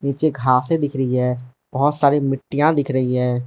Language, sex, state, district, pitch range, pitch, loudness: Hindi, male, Arunachal Pradesh, Lower Dibang Valley, 125-145 Hz, 135 Hz, -19 LUFS